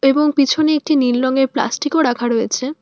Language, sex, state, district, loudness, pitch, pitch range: Bengali, female, West Bengal, Alipurduar, -16 LUFS, 270 Hz, 250-300 Hz